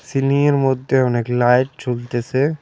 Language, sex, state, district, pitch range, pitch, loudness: Bengali, male, West Bengal, Cooch Behar, 125-135 Hz, 130 Hz, -18 LUFS